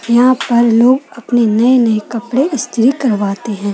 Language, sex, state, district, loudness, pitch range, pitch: Hindi, female, Bihar, Kishanganj, -13 LUFS, 225-255 Hz, 235 Hz